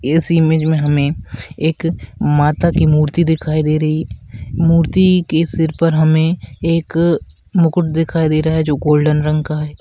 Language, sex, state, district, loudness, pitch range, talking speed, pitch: Hindi, female, Rajasthan, Nagaur, -15 LUFS, 150-165 Hz, 165 wpm, 160 Hz